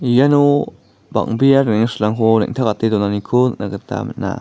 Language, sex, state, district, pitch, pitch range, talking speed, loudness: Garo, male, Meghalaya, West Garo Hills, 110 Hz, 105-125 Hz, 110 wpm, -16 LUFS